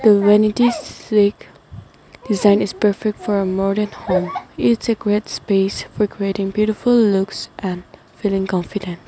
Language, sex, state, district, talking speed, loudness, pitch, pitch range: English, female, Nagaland, Dimapur, 120 wpm, -18 LUFS, 205 Hz, 195-215 Hz